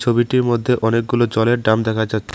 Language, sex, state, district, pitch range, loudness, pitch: Bengali, male, West Bengal, Cooch Behar, 110-120 Hz, -17 LUFS, 115 Hz